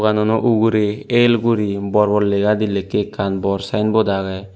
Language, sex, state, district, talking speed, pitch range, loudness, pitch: Chakma, male, Tripura, Unakoti, 160 wpm, 100-110 Hz, -17 LUFS, 105 Hz